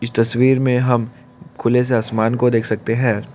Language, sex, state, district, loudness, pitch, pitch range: Hindi, male, Assam, Kamrup Metropolitan, -17 LUFS, 120 Hz, 115-125 Hz